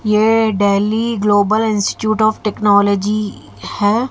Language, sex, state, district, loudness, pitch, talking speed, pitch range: Hindi, female, Haryana, Jhajjar, -15 LUFS, 210 Hz, 100 wpm, 205-220 Hz